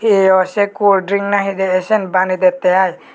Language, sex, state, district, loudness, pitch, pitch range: Chakma, male, Tripura, Unakoti, -14 LUFS, 190 Hz, 185-200 Hz